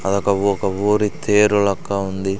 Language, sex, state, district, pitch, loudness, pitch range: Telugu, male, Andhra Pradesh, Sri Satya Sai, 100 Hz, -18 LUFS, 95-105 Hz